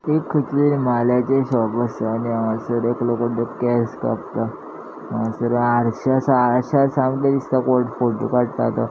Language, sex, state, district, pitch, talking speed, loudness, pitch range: Konkani, male, Goa, North and South Goa, 120 Hz, 140 wpm, -20 LUFS, 120-130 Hz